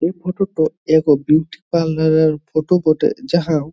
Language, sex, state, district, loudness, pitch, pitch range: Bengali, male, West Bengal, Jhargram, -17 LUFS, 160 Hz, 155-170 Hz